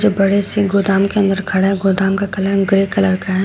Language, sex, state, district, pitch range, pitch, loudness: Hindi, female, Uttar Pradesh, Shamli, 195-200 Hz, 195 Hz, -15 LUFS